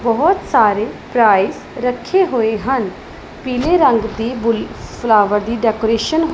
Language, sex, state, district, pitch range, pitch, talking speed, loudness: Punjabi, female, Punjab, Pathankot, 225-265 Hz, 235 Hz, 125 wpm, -16 LUFS